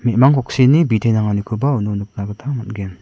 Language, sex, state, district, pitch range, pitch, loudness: Garo, male, Meghalaya, South Garo Hills, 105-135 Hz, 115 Hz, -17 LUFS